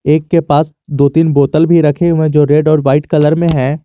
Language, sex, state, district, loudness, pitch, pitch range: Hindi, male, Jharkhand, Garhwa, -11 LUFS, 155 Hz, 145-160 Hz